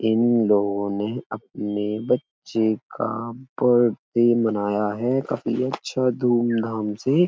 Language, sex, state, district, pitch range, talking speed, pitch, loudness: Hindi, male, Uttar Pradesh, Etah, 105-125 Hz, 105 wpm, 115 Hz, -23 LUFS